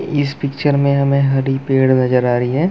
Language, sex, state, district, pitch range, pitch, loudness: Hindi, male, Chhattisgarh, Balrampur, 130-140 Hz, 140 Hz, -15 LUFS